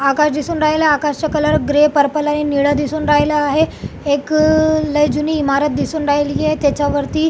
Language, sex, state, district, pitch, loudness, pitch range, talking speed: Marathi, female, Maharashtra, Solapur, 295 Hz, -15 LUFS, 290-310 Hz, 165 wpm